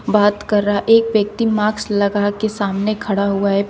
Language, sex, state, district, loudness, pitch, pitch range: Hindi, female, Uttar Pradesh, Shamli, -17 LUFS, 205 Hz, 200-215 Hz